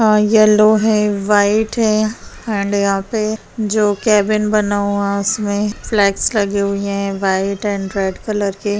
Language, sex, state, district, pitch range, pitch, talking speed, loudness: Hindi, female, Uttar Pradesh, Jalaun, 200-215 Hz, 205 Hz, 155 wpm, -16 LUFS